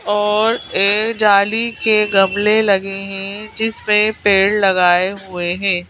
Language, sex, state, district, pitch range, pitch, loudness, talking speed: Hindi, female, Madhya Pradesh, Bhopal, 195-215 Hz, 205 Hz, -15 LUFS, 130 wpm